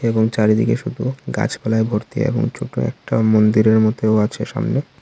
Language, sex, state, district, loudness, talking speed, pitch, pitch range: Bengali, male, Tripura, Unakoti, -18 LUFS, 145 wpm, 110 Hz, 110-115 Hz